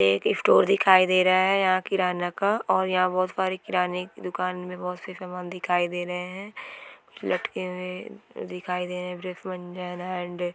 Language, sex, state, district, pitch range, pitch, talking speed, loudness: Hindi, female, West Bengal, Jhargram, 180-185 Hz, 180 Hz, 160 wpm, -25 LUFS